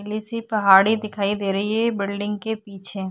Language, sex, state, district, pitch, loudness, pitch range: Hindi, female, Uttarakhand, Tehri Garhwal, 205 Hz, -21 LUFS, 200-220 Hz